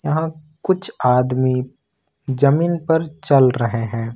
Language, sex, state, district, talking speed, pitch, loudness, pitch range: Hindi, male, Jharkhand, Ranchi, 115 wpm, 140 Hz, -18 LUFS, 125-160 Hz